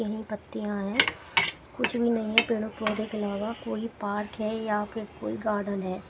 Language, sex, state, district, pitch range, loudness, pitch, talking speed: Hindi, female, Maharashtra, Gondia, 210-220 Hz, -28 LUFS, 215 Hz, 185 wpm